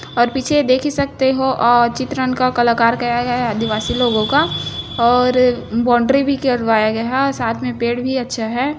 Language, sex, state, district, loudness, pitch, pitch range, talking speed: Hindi, female, Chhattisgarh, Bilaspur, -16 LUFS, 245 Hz, 235-265 Hz, 175 wpm